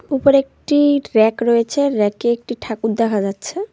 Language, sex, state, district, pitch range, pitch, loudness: Bengali, female, West Bengal, Cooch Behar, 220-280 Hz, 235 Hz, -17 LUFS